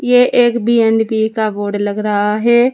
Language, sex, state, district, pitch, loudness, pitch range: Hindi, female, Uttar Pradesh, Saharanpur, 225 Hz, -14 LUFS, 210-240 Hz